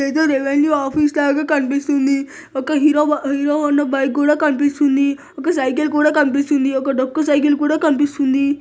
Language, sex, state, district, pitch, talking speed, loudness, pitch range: Telugu, male, Telangana, Nalgonda, 290 Hz, 145 wpm, -17 LUFS, 275-300 Hz